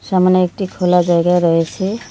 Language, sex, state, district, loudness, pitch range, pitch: Bengali, female, West Bengal, Cooch Behar, -15 LUFS, 175-190 Hz, 180 Hz